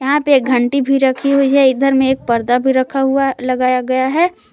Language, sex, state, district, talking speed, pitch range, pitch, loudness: Hindi, female, Jharkhand, Palamu, 200 wpm, 255-275 Hz, 265 Hz, -14 LUFS